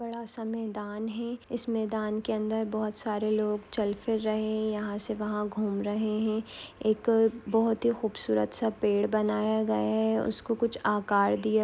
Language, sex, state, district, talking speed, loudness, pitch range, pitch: Hindi, female, Maharashtra, Aurangabad, 165 wpm, -29 LUFS, 210-225 Hz, 215 Hz